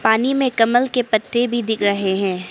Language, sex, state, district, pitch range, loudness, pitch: Hindi, male, Arunachal Pradesh, Papum Pare, 200-245 Hz, -18 LUFS, 225 Hz